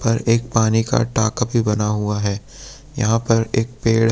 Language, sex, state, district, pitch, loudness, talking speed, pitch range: Hindi, male, Bihar, Gopalganj, 115 Hz, -19 LUFS, 190 wpm, 105-115 Hz